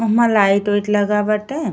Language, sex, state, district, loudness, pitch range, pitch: Bhojpuri, female, Uttar Pradesh, Ghazipur, -16 LUFS, 205-225 Hz, 210 Hz